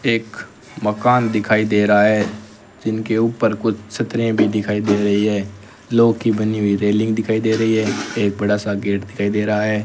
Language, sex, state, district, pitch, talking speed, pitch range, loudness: Hindi, male, Rajasthan, Bikaner, 105 Hz, 195 wpm, 105-110 Hz, -18 LUFS